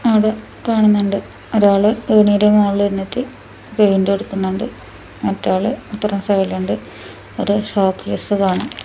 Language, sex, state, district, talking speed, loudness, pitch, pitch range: Malayalam, female, Kerala, Kasaragod, 110 wpm, -17 LUFS, 205 Hz, 195-215 Hz